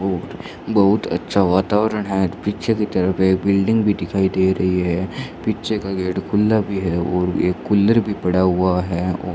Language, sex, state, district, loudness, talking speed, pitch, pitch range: Hindi, male, Rajasthan, Bikaner, -19 LUFS, 190 wpm, 95 Hz, 90-105 Hz